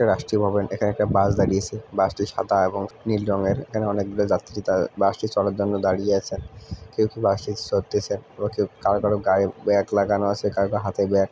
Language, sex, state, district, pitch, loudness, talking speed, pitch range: Bengali, male, West Bengal, Purulia, 100 Hz, -23 LUFS, 210 wpm, 100-105 Hz